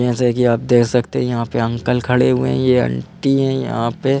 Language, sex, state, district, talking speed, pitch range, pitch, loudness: Hindi, male, Madhya Pradesh, Bhopal, 255 wpm, 115-125 Hz, 120 Hz, -17 LUFS